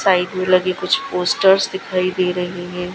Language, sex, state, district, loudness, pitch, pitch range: Hindi, female, Gujarat, Gandhinagar, -18 LUFS, 185 Hz, 180-190 Hz